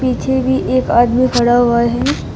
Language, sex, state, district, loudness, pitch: Hindi, female, Uttar Pradesh, Shamli, -14 LUFS, 240 Hz